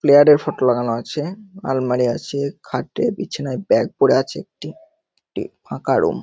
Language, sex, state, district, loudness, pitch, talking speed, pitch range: Bengali, male, West Bengal, North 24 Parganas, -19 LUFS, 145 Hz, 165 wpm, 125-175 Hz